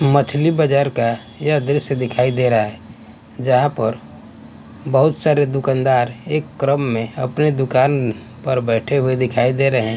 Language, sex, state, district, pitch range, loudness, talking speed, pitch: Hindi, male, Bihar, West Champaran, 120-140 Hz, -18 LUFS, 155 wpm, 130 Hz